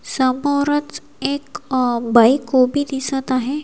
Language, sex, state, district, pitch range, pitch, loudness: Marathi, female, Maharashtra, Washim, 255-285 Hz, 270 Hz, -18 LUFS